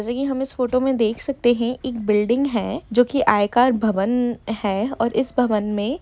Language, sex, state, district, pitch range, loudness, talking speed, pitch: Hindi, female, Jharkhand, Jamtara, 220-255 Hz, -20 LUFS, 170 wpm, 240 Hz